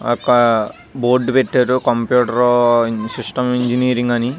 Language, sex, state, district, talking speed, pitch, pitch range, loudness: Telugu, male, Andhra Pradesh, Visakhapatnam, 95 wpm, 120 Hz, 120-125 Hz, -16 LUFS